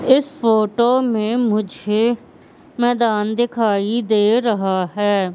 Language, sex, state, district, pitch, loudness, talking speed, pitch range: Hindi, female, Madhya Pradesh, Katni, 225 Hz, -18 LUFS, 100 wpm, 210-240 Hz